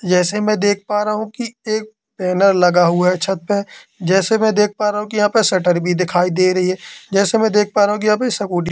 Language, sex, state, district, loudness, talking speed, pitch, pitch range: Hindi, male, Madhya Pradesh, Katni, -16 LUFS, 280 wpm, 205 Hz, 185-215 Hz